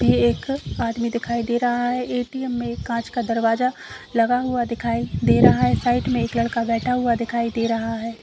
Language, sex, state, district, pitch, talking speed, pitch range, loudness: Hindi, female, Uttar Pradesh, Varanasi, 235 Hz, 210 wpm, 230-245 Hz, -21 LUFS